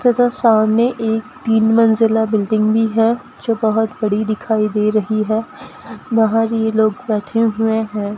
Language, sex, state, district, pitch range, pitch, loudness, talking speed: Hindi, female, Rajasthan, Bikaner, 215-225 Hz, 220 Hz, -16 LUFS, 145 wpm